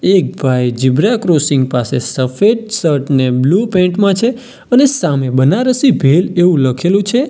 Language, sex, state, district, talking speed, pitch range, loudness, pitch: Gujarati, male, Gujarat, Valsad, 155 wpm, 130-215 Hz, -12 LUFS, 175 Hz